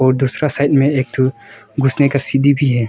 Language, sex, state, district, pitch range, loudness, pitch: Hindi, male, Arunachal Pradesh, Longding, 130-140 Hz, -15 LUFS, 135 Hz